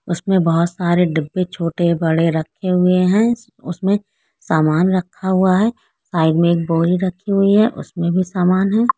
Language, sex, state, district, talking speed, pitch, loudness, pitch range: Hindi, female, Andhra Pradesh, Chittoor, 160 wpm, 180 Hz, -17 LUFS, 170-195 Hz